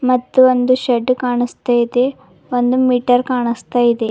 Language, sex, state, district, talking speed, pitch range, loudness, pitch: Kannada, female, Karnataka, Bidar, 115 wpm, 245-255 Hz, -15 LUFS, 250 Hz